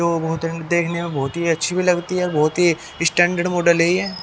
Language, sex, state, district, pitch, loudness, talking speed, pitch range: Hindi, male, Haryana, Jhajjar, 170 Hz, -19 LUFS, 225 wpm, 165-180 Hz